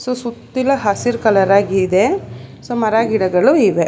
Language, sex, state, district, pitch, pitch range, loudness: Kannada, female, Karnataka, Bangalore, 205 Hz, 185-235 Hz, -15 LUFS